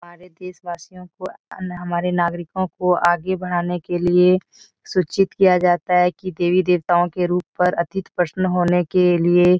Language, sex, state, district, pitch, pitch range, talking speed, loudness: Hindi, female, Bihar, Jahanabad, 180 Hz, 175-185 Hz, 165 wpm, -19 LUFS